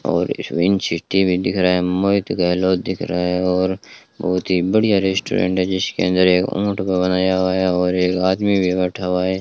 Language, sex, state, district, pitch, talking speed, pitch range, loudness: Hindi, male, Rajasthan, Bikaner, 95 Hz, 210 wpm, 90-95 Hz, -18 LUFS